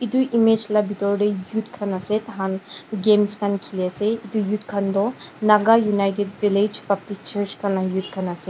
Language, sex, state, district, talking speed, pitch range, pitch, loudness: Nagamese, female, Nagaland, Dimapur, 190 wpm, 195-215 Hz, 205 Hz, -22 LUFS